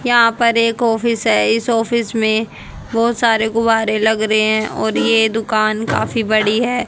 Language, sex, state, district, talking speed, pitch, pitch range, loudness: Hindi, female, Haryana, Rohtak, 175 wpm, 225 Hz, 220-230 Hz, -15 LUFS